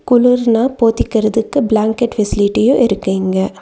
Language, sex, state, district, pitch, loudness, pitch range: Tamil, female, Tamil Nadu, Nilgiris, 225 Hz, -14 LUFS, 210-245 Hz